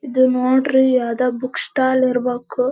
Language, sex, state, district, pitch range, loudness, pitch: Kannada, female, Karnataka, Belgaum, 250-260 Hz, -18 LUFS, 255 Hz